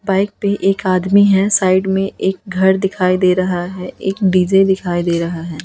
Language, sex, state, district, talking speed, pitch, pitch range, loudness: Hindi, female, Chhattisgarh, Raipur, 200 wpm, 190 Hz, 180-195 Hz, -15 LUFS